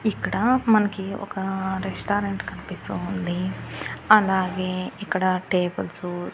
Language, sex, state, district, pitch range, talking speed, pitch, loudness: Telugu, female, Andhra Pradesh, Annamaya, 185-205 Hz, 95 wpm, 190 Hz, -24 LUFS